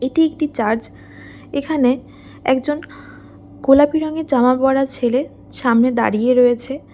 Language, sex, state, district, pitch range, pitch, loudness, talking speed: Bengali, female, West Bengal, Dakshin Dinajpur, 245-295 Hz, 265 Hz, -17 LUFS, 120 wpm